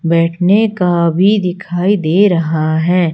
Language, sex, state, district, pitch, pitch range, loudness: Hindi, female, Madhya Pradesh, Umaria, 175 Hz, 165-190 Hz, -13 LUFS